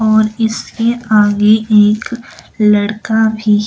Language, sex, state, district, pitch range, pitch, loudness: Hindi, female, Himachal Pradesh, Shimla, 210-220 Hz, 215 Hz, -12 LUFS